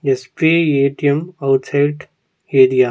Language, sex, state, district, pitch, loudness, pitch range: Tamil, male, Tamil Nadu, Nilgiris, 140 Hz, -16 LUFS, 135-150 Hz